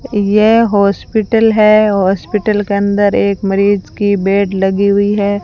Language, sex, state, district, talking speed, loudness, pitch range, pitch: Hindi, female, Rajasthan, Bikaner, 145 wpm, -12 LUFS, 200-210 Hz, 205 Hz